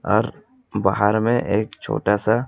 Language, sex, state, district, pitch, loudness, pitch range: Hindi, male, Chhattisgarh, Raipur, 105 Hz, -21 LUFS, 105-115 Hz